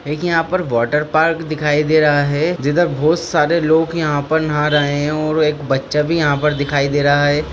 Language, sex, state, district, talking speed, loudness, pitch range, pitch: Hindi, male, Maharashtra, Pune, 225 wpm, -16 LUFS, 145-160 Hz, 150 Hz